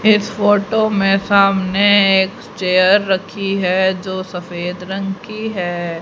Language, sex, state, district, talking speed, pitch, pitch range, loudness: Hindi, female, Haryana, Rohtak, 130 wpm, 195 Hz, 185-205 Hz, -16 LUFS